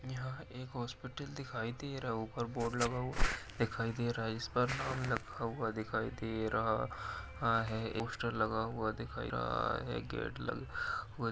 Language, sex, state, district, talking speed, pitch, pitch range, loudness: Hindi, male, Uttar Pradesh, Etah, 180 wpm, 115 Hz, 110-125 Hz, -38 LUFS